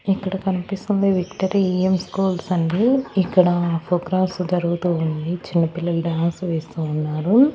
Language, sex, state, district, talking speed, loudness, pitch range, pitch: Telugu, female, Andhra Pradesh, Annamaya, 110 wpm, -21 LUFS, 170-190 Hz, 180 Hz